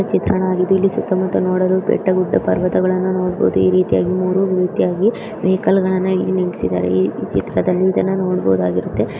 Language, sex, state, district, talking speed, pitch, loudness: Kannada, female, Karnataka, Chamarajanagar, 130 wpm, 185 Hz, -17 LUFS